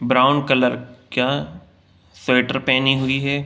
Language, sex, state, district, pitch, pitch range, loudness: Hindi, male, Bihar, Gopalganj, 130 Hz, 125-135 Hz, -18 LUFS